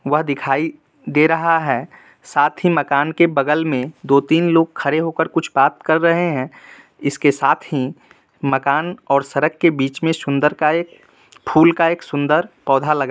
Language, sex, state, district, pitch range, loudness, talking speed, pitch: Hindi, male, Bihar, Muzaffarpur, 140-165 Hz, -17 LUFS, 175 wpm, 150 Hz